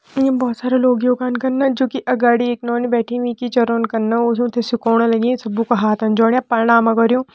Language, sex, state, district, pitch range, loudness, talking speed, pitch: Kumaoni, female, Uttarakhand, Tehri Garhwal, 230-250 Hz, -17 LUFS, 165 wpm, 240 Hz